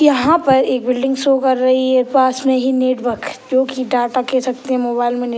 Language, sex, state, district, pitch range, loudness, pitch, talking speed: Hindi, male, Bihar, Sitamarhi, 250-265 Hz, -16 LUFS, 255 Hz, 235 wpm